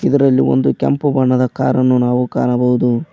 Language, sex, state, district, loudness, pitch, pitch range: Kannada, male, Karnataka, Koppal, -14 LUFS, 125 Hz, 125-130 Hz